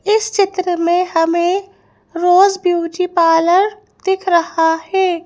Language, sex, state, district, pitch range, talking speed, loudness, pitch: Hindi, female, Madhya Pradesh, Bhopal, 340-385 Hz, 115 wpm, -15 LUFS, 355 Hz